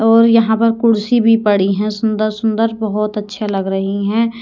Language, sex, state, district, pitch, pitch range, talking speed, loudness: Hindi, female, Haryana, Rohtak, 220 Hz, 210-225 Hz, 190 wpm, -15 LUFS